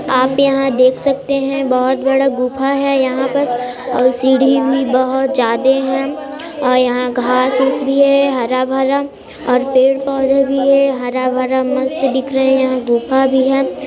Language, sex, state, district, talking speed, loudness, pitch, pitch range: Hindi, male, Chhattisgarh, Sarguja, 150 wpm, -14 LUFS, 265 Hz, 255-270 Hz